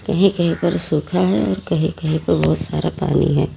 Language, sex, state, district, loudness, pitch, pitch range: Hindi, female, Uttar Pradesh, Lalitpur, -18 LUFS, 160 Hz, 155-180 Hz